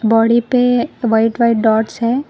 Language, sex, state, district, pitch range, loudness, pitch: Hindi, female, Karnataka, Koppal, 225-245 Hz, -14 LUFS, 230 Hz